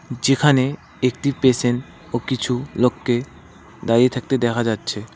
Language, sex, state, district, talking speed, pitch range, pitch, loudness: Bengali, male, West Bengal, Cooch Behar, 115 wpm, 115-130 Hz, 125 Hz, -20 LUFS